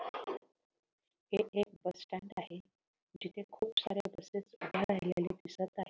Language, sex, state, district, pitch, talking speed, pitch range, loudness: Marathi, female, Maharashtra, Solapur, 190 Hz, 130 wpm, 180-205 Hz, -38 LUFS